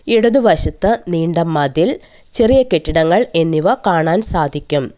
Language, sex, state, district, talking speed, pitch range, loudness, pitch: Malayalam, female, Kerala, Kollam, 95 wpm, 155-225 Hz, -15 LUFS, 170 Hz